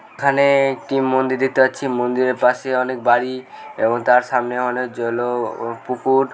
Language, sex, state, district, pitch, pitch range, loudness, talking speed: Bengali, male, West Bengal, Jalpaiguri, 125 Hz, 125-130 Hz, -18 LUFS, 150 wpm